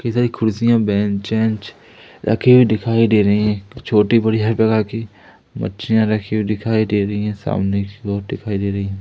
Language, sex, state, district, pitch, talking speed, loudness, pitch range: Hindi, male, Madhya Pradesh, Umaria, 110 Hz, 200 wpm, -17 LUFS, 100-110 Hz